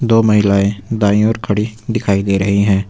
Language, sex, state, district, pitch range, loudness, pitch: Hindi, male, Uttar Pradesh, Lucknow, 100-110 Hz, -15 LUFS, 105 Hz